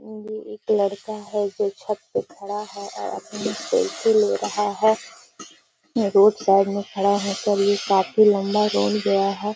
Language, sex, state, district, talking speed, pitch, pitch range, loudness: Hindi, female, Bihar, Gaya, 170 wpm, 205 Hz, 200-215 Hz, -21 LUFS